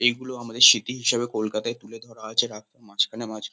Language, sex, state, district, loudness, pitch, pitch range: Bengali, male, West Bengal, Kolkata, -22 LUFS, 115 Hz, 110-120 Hz